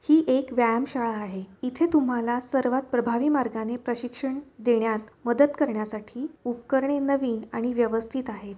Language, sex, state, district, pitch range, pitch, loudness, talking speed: Marathi, female, Maharashtra, Pune, 230-270 Hz, 245 Hz, -26 LUFS, 140 wpm